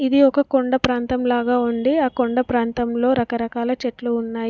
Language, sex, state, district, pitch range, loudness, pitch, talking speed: Telugu, female, Telangana, Komaram Bheem, 235-255 Hz, -20 LUFS, 245 Hz, 160 wpm